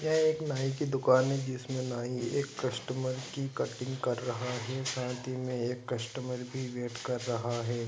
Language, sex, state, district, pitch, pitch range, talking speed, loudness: Hindi, male, Andhra Pradesh, Anantapur, 130 Hz, 125-130 Hz, 190 wpm, -33 LUFS